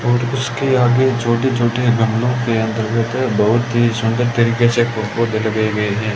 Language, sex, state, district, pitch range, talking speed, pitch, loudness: Hindi, male, Rajasthan, Bikaner, 110-120 Hz, 165 wpm, 120 Hz, -16 LUFS